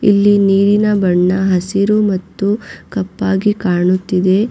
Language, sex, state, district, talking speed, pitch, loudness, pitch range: Kannada, female, Karnataka, Raichur, 95 wpm, 195 Hz, -14 LUFS, 185-205 Hz